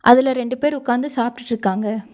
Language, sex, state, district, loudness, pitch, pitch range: Tamil, female, Tamil Nadu, Nilgiris, -19 LUFS, 245 Hz, 230-260 Hz